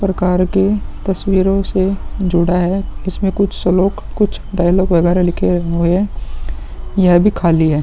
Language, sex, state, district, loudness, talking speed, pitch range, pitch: Hindi, male, Uttar Pradesh, Muzaffarnagar, -15 LUFS, 140 wpm, 175-195 Hz, 190 Hz